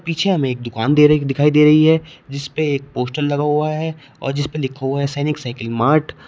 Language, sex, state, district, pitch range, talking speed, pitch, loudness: Hindi, male, Uttar Pradesh, Shamli, 135-155 Hz, 230 wpm, 145 Hz, -17 LUFS